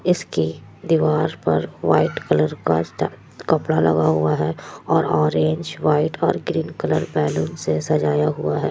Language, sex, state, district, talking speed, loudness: Hindi, female, Bihar, Kishanganj, 150 wpm, -20 LUFS